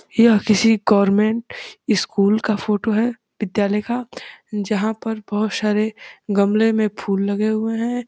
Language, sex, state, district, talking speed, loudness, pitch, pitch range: Hindi, male, Uttar Pradesh, Deoria, 140 wpm, -19 LUFS, 215 Hz, 205-225 Hz